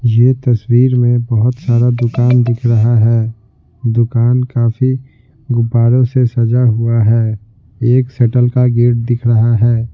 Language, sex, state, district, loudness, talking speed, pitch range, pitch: Hindi, male, Bihar, Patna, -13 LUFS, 140 wpm, 115-125 Hz, 120 Hz